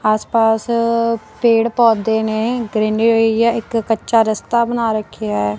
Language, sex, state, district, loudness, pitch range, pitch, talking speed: Punjabi, female, Punjab, Kapurthala, -16 LUFS, 220-230 Hz, 225 Hz, 140 wpm